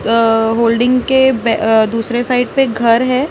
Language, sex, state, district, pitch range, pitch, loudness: Hindi, female, Chhattisgarh, Raipur, 230-255 Hz, 235 Hz, -13 LUFS